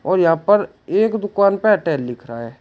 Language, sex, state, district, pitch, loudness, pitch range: Hindi, male, Uttar Pradesh, Shamli, 185 Hz, -17 LUFS, 130-205 Hz